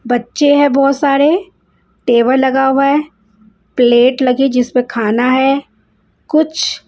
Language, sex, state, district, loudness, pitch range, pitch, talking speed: Hindi, female, Punjab, Fazilka, -13 LUFS, 240-280 Hz, 265 Hz, 120 wpm